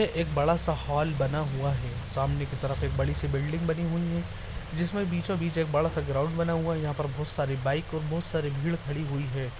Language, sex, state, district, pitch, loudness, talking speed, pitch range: Hindi, male, Bihar, Araria, 150 Hz, -29 LUFS, 250 wpm, 140-165 Hz